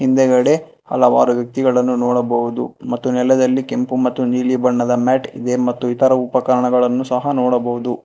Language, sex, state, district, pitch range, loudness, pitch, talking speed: Kannada, male, Karnataka, Bangalore, 125-130 Hz, -16 LUFS, 125 Hz, 125 wpm